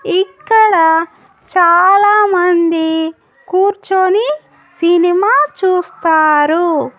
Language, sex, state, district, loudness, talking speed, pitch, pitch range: Telugu, female, Andhra Pradesh, Annamaya, -12 LUFS, 50 wpm, 355 Hz, 325-390 Hz